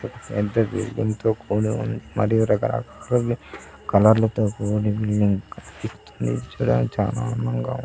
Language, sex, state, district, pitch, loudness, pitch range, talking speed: Telugu, male, Andhra Pradesh, Sri Satya Sai, 105 Hz, -23 LUFS, 100-110 Hz, 100 wpm